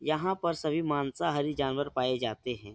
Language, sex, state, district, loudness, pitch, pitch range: Hindi, male, Uttar Pradesh, Etah, -31 LUFS, 145 Hz, 130-160 Hz